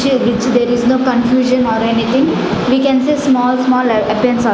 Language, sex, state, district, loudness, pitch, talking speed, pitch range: English, female, Punjab, Fazilka, -13 LUFS, 250 Hz, 160 wpm, 240-260 Hz